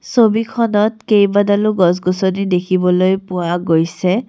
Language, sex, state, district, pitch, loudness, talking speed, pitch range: Assamese, female, Assam, Kamrup Metropolitan, 190 Hz, -15 LUFS, 100 wpm, 180-215 Hz